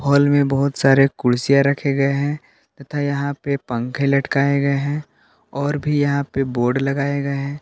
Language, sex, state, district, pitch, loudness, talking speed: Hindi, male, Jharkhand, Palamu, 140 Hz, -19 LUFS, 180 wpm